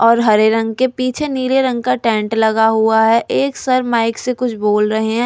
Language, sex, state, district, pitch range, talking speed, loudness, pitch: Hindi, female, Delhi, New Delhi, 220-255 Hz, 230 wpm, -15 LUFS, 230 Hz